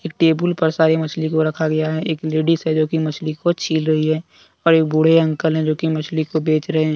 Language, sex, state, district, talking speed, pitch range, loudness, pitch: Hindi, male, Jharkhand, Deoghar, 240 wpm, 155-160 Hz, -18 LUFS, 160 Hz